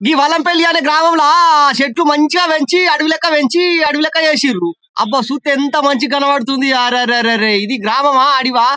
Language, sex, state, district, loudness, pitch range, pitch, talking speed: Telugu, male, Telangana, Karimnagar, -12 LUFS, 265-315 Hz, 285 Hz, 170 wpm